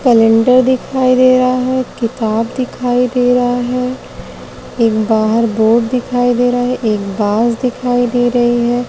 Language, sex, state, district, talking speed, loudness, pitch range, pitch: Hindi, female, Uttar Pradesh, Varanasi, 155 wpm, -13 LUFS, 230-250 Hz, 245 Hz